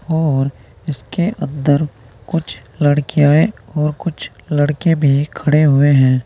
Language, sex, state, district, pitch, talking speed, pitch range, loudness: Hindi, male, Uttar Pradesh, Saharanpur, 145 Hz, 125 wpm, 140-155 Hz, -16 LUFS